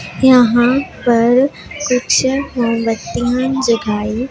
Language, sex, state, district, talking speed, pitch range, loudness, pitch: Hindi, female, Punjab, Pathankot, 70 wpm, 230-260 Hz, -14 LUFS, 245 Hz